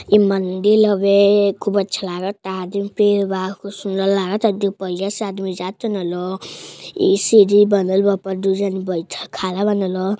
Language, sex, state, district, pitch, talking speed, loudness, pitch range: Hindi, female, Uttar Pradesh, Deoria, 195 Hz, 175 wpm, -18 LUFS, 190-205 Hz